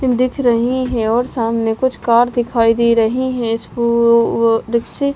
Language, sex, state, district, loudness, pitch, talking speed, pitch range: Hindi, female, Bihar, West Champaran, -15 LUFS, 235 Hz, 150 wpm, 230-250 Hz